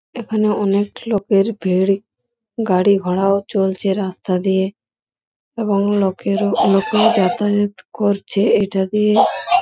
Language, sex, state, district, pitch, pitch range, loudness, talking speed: Bengali, female, West Bengal, Purulia, 200 Hz, 195-210 Hz, -17 LUFS, 100 wpm